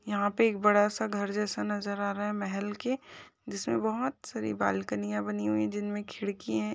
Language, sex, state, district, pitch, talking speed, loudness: Hindi, female, Chhattisgarh, Rajnandgaon, 205 Hz, 205 wpm, -31 LUFS